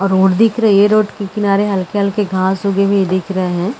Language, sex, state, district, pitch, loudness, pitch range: Hindi, female, Chhattisgarh, Balrampur, 200 Hz, -14 LUFS, 190-205 Hz